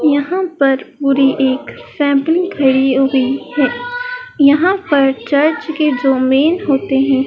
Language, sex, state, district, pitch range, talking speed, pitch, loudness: Hindi, female, Madhya Pradesh, Dhar, 270-315 Hz, 130 wpm, 285 Hz, -14 LUFS